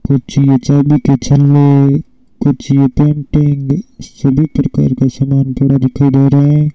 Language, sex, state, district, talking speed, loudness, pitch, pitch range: Hindi, male, Rajasthan, Bikaner, 140 wpm, -11 LUFS, 140 Hz, 135-150 Hz